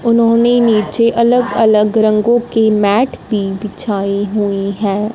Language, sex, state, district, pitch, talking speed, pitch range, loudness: Hindi, female, Punjab, Fazilka, 215 Hz, 130 wpm, 205-235 Hz, -13 LUFS